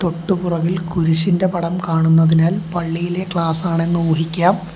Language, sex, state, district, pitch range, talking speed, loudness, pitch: Malayalam, male, Kerala, Kollam, 165-180 Hz, 100 wpm, -17 LUFS, 170 Hz